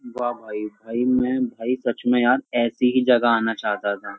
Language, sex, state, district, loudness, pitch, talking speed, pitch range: Hindi, male, Uttar Pradesh, Jyotiba Phule Nagar, -22 LUFS, 120 Hz, 200 wpm, 115-125 Hz